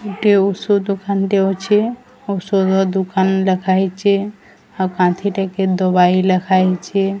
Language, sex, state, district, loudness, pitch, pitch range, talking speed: Odia, female, Odisha, Sambalpur, -16 LUFS, 195 Hz, 185-200 Hz, 115 wpm